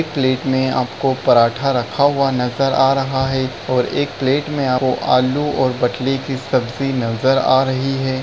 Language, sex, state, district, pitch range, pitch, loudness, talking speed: Hindi, male, Bihar, Gaya, 130-135 Hz, 130 Hz, -17 LUFS, 180 wpm